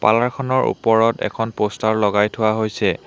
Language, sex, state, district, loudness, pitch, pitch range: Assamese, male, Assam, Hailakandi, -19 LUFS, 110 Hz, 110-115 Hz